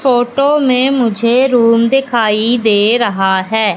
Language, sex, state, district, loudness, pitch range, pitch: Hindi, female, Madhya Pradesh, Katni, -12 LUFS, 220-255 Hz, 235 Hz